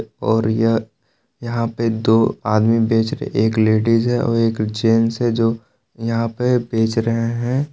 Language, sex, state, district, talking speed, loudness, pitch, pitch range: Hindi, male, Jharkhand, Palamu, 165 wpm, -18 LUFS, 115 Hz, 110-115 Hz